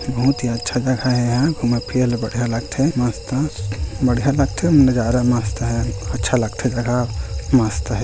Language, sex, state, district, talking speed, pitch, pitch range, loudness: Hindi, male, Chhattisgarh, Korba, 170 wpm, 120 Hz, 115-130 Hz, -19 LUFS